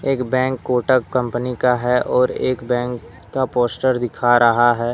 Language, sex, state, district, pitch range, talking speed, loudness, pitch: Hindi, male, Jharkhand, Deoghar, 120-130 Hz, 170 wpm, -18 LUFS, 125 Hz